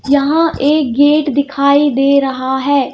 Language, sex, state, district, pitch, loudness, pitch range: Hindi, female, Madhya Pradesh, Bhopal, 280 Hz, -12 LUFS, 275-290 Hz